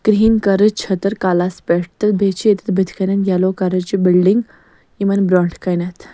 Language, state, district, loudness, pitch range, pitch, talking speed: Kashmiri, Punjab, Kapurthala, -16 LUFS, 185-200 Hz, 190 Hz, 155 wpm